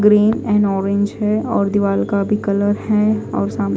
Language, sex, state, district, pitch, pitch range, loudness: Hindi, female, Odisha, Khordha, 205 Hz, 200-210 Hz, -17 LUFS